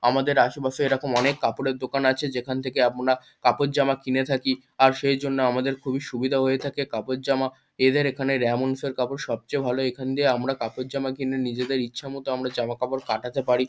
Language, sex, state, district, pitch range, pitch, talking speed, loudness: Bengali, male, West Bengal, Kolkata, 125-135 Hz, 130 Hz, 195 wpm, -25 LUFS